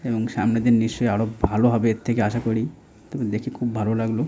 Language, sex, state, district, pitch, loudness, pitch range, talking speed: Bengali, male, West Bengal, North 24 Parganas, 115 Hz, -22 LUFS, 110-120 Hz, 240 wpm